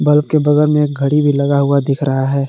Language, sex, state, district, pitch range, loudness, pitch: Hindi, male, Jharkhand, Garhwa, 140-150 Hz, -14 LUFS, 140 Hz